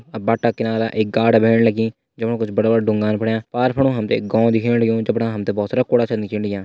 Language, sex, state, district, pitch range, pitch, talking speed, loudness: Hindi, male, Uttarakhand, Uttarkashi, 110-115 Hz, 115 Hz, 270 wpm, -18 LUFS